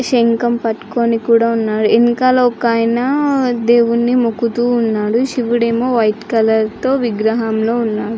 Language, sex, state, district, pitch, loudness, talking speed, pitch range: Telugu, female, Andhra Pradesh, Srikakulam, 235 Hz, -15 LUFS, 110 wpm, 225-240 Hz